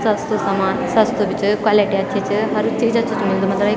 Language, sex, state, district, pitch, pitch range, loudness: Garhwali, female, Uttarakhand, Tehri Garhwal, 210 Hz, 200-215 Hz, -18 LUFS